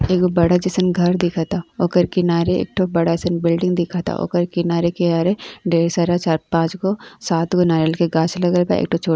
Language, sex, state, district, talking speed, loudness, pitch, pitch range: Bhojpuri, female, Uttar Pradesh, Ghazipur, 190 wpm, -18 LUFS, 175 Hz, 170-180 Hz